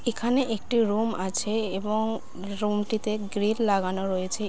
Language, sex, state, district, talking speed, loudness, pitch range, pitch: Bengali, female, West Bengal, Dakshin Dinajpur, 135 wpm, -27 LUFS, 200-225 Hz, 210 Hz